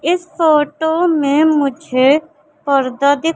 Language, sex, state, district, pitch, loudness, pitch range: Hindi, female, Madhya Pradesh, Katni, 300 Hz, -15 LUFS, 280-320 Hz